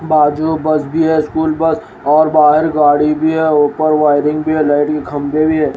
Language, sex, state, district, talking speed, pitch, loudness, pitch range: Hindi, male, Haryana, Rohtak, 210 wpm, 155 Hz, -13 LUFS, 150-155 Hz